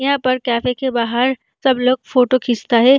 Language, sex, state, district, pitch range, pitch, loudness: Hindi, female, Uttar Pradesh, Jyotiba Phule Nagar, 240-260 Hz, 255 Hz, -17 LUFS